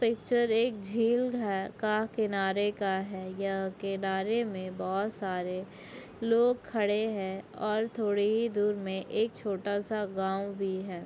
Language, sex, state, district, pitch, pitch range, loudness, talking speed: Hindi, female, Chhattisgarh, Raigarh, 205 Hz, 195-220 Hz, -31 LUFS, 140 wpm